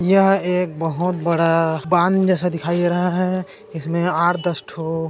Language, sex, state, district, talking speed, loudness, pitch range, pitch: Hindi, male, Chhattisgarh, Kabirdham, 175 wpm, -19 LUFS, 165-180 Hz, 175 Hz